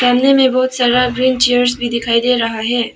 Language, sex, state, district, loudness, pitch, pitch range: Hindi, female, Arunachal Pradesh, Papum Pare, -13 LUFS, 245 Hz, 240-255 Hz